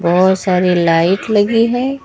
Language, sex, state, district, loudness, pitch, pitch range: Hindi, female, Uttar Pradesh, Lucknow, -13 LUFS, 190 Hz, 180-225 Hz